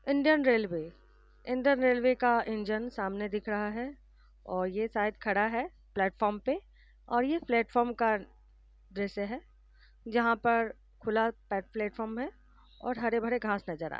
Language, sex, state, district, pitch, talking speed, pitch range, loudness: Hindi, female, Bihar, Gopalganj, 225 Hz, 150 wpm, 205-245 Hz, -31 LUFS